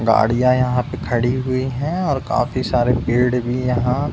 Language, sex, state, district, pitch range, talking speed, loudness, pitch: Hindi, male, Uttar Pradesh, Budaun, 120-130 Hz, 190 wpm, -19 LUFS, 125 Hz